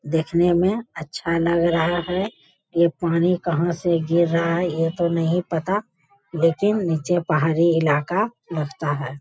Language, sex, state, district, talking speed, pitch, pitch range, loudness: Hindi, female, Bihar, Bhagalpur, 150 wpm, 170 Hz, 160-180 Hz, -21 LUFS